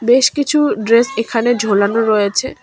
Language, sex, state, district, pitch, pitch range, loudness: Bengali, female, West Bengal, Cooch Behar, 230 Hz, 215-250 Hz, -14 LUFS